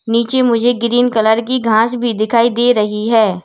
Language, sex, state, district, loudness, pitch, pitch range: Hindi, female, Uttar Pradesh, Lalitpur, -14 LUFS, 235 Hz, 220-245 Hz